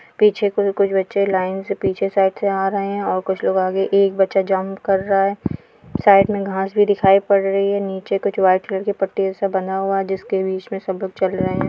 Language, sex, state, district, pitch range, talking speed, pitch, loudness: Hindi, female, Uttar Pradesh, Deoria, 190-200 Hz, 240 wpm, 195 Hz, -19 LUFS